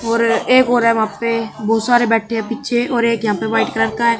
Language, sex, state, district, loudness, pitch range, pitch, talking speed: Hindi, male, Haryana, Jhajjar, -16 LUFS, 225-235 Hz, 230 Hz, 255 wpm